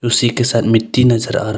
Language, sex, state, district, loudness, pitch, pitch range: Hindi, male, Arunachal Pradesh, Longding, -14 LUFS, 120 Hz, 115-120 Hz